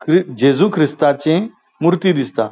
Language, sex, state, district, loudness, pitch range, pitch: Konkani, male, Goa, North and South Goa, -15 LUFS, 140-180 Hz, 155 Hz